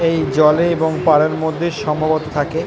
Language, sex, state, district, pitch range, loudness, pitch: Bengali, male, West Bengal, North 24 Parganas, 150-165 Hz, -16 LUFS, 160 Hz